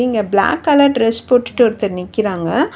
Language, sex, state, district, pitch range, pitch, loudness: Tamil, female, Tamil Nadu, Chennai, 205-250 Hz, 230 Hz, -15 LUFS